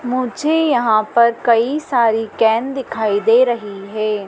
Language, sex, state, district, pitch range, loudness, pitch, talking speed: Hindi, female, Madhya Pradesh, Dhar, 215-255 Hz, -16 LUFS, 230 Hz, 140 wpm